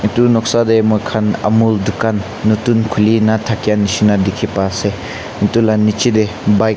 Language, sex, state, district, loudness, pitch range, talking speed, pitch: Nagamese, male, Nagaland, Kohima, -14 LUFS, 105-110 Hz, 170 wpm, 110 Hz